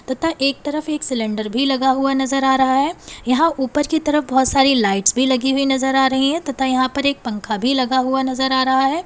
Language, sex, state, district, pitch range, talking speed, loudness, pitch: Hindi, female, Uttar Pradesh, Lalitpur, 260-275 Hz, 250 wpm, -18 LUFS, 265 Hz